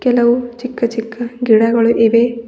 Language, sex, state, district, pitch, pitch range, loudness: Kannada, female, Karnataka, Bidar, 235 Hz, 230-240 Hz, -14 LUFS